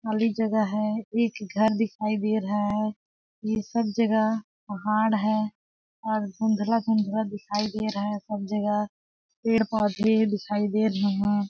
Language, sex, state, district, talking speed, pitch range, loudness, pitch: Hindi, female, Chhattisgarh, Balrampur, 150 wpm, 210-220 Hz, -26 LUFS, 215 Hz